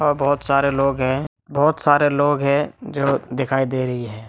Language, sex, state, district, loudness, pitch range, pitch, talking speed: Hindi, male, Jharkhand, Jamtara, -19 LUFS, 130-145 Hz, 140 Hz, 195 wpm